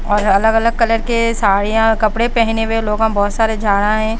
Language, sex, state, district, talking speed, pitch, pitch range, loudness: Hindi, female, Haryana, Rohtak, 200 wpm, 220 Hz, 210-225 Hz, -15 LUFS